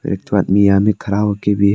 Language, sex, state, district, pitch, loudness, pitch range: Hindi, male, Arunachal Pradesh, Papum Pare, 100 Hz, -15 LUFS, 100-105 Hz